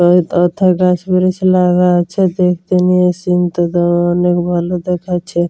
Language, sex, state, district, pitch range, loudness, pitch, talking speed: Bengali, female, West Bengal, Jalpaiguri, 175-180 Hz, -13 LUFS, 180 Hz, 120 wpm